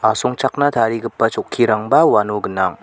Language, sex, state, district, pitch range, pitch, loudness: Garo, male, Meghalaya, West Garo Hills, 110-130 Hz, 115 Hz, -17 LUFS